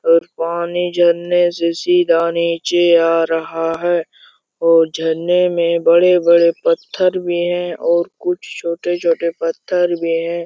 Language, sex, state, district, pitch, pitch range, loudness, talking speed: Hindi, male, Jharkhand, Jamtara, 170 Hz, 165-175 Hz, -16 LUFS, 130 wpm